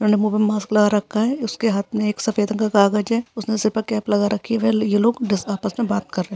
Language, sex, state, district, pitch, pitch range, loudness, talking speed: Hindi, female, Uttarakhand, Uttarkashi, 215 Hz, 210-220 Hz, -20 LUFS, 300 wpm